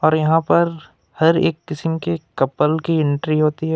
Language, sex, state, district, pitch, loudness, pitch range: Hindi, male, Jharkhand, Ranchi, 160 Hz, -18 LUFS, 150-165 Hz